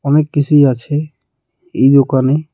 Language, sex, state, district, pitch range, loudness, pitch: Bengali, male, West Bengal, Alipurduar, 130-150 Hz, -13 LUFS, 140 Hz